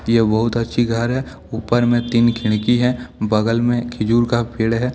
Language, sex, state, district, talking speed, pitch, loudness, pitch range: Hindi, male, Jharkhand, Deoghar, 195 wpm, 120 Hz, -18 LUFS, 115-120 Hz